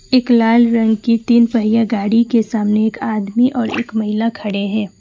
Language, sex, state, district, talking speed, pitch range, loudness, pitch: Hindi, female, West Bengal, Alipurduar, 190 wpm, 215-235 Hz, -15 LUFS, 225 Hz